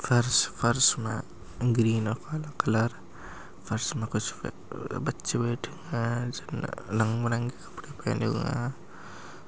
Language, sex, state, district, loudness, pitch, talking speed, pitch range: Angika, male, Bihar, Madhepura, -29 LUFS, 115 Hz, 135 wpm, 110-120 Hz